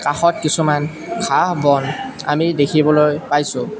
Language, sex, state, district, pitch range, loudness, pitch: Assamese, male, Assam, Kamrup Metropolitan, 145-165 Hz, -17 LUFS, 150 Hz